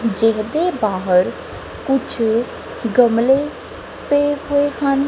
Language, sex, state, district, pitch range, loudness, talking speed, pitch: Punjabi, female, Punjab, Kapurthala, 225-285 Hz, -18 LUFS, 95 wpm, 260 Hz